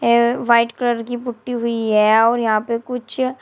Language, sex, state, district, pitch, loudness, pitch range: Hindi, female, Uttar Pradesh, Shamli, 235 Hz, -18 LUFS, 230-245 Hz